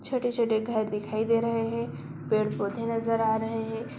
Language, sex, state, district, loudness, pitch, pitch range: Hindi, female, Bihar, Sitamarhi, -28 LUFS, 225 Hz, 215-230 Hz